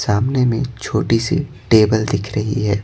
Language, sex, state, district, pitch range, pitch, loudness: Hindi, male, Bihar, Patna, 105-125 Hz, 115 Hz, -17 LUFS